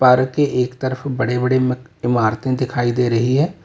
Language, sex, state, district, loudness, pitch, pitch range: Hindi, male, Uttar Pradesh, Lalitpur, -18 LUFS, 130 Hz, 125-130 Hz